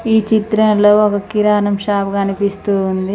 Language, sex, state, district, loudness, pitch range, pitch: Telugu, female, Telangana, Mahabubabad, -14 LUFS, 200-210 Hz, 205 Hz